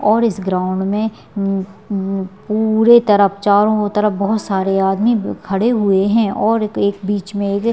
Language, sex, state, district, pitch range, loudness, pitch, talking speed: Hindi, female, Bihar, Madhepura, 195-220 Hz, -16 LUFS, 205 Hz, 155 wpm